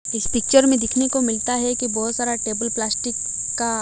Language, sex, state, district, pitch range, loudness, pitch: Hindi, female, Odisha, Malkangiri, 225-245 Hz, -19 LUFS, 240 Hz